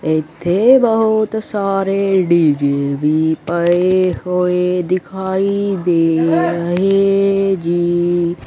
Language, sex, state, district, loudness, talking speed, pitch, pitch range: Punjabi, male, Punjab, Kapurthala, -15 LUFS, 80 wpm, 180 Hz, 170-195 Hz